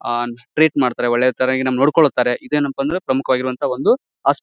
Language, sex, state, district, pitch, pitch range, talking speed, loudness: Kannada, male, Karnataka, Bijapur, 130 Hz, 125-140 Hz, 165 wpm, -18 LUFS